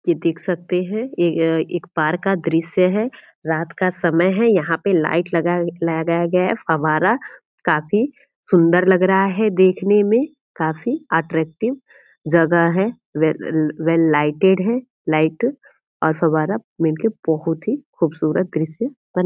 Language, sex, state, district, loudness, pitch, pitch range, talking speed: Hindi, female, Bihar, Purnia, -19 LUFS, 175 Hz, 160-205 Hz, 145 wpm